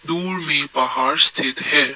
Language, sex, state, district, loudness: Hindi, male, Assam, Kamrup Metropolitan, -16 LUFS